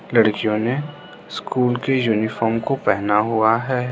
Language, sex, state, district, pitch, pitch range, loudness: Hindi, male, Arunachal Pradesh, Lower Dibang Valley, 115 Hz, 110-130 Hz, -20 LUFS